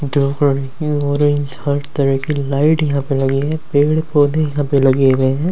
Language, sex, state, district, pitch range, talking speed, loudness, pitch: Hindi, male, Delhi, New Delhi, 135-150 Hz, 165 wpm, -16 LUFS, 145 Hz